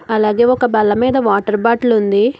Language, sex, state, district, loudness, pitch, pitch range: Telugu, female, Telangana, Hyderabad, -14 LUFS, 225 Hz, 210-245 Hz